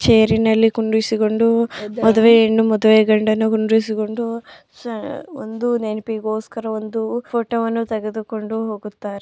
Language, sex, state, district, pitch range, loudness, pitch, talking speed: Kannada, female, Karnataka, Bijapur, 215-230 Hz, -18 LUFS, 220 Hz, 85 wpm